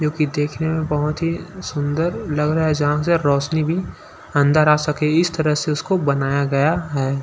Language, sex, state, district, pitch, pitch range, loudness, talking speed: Hindi, male, Chhattisgarh, Sukma, 150 Hz, 145-160 Hz, -19 LUFS, 200 wpm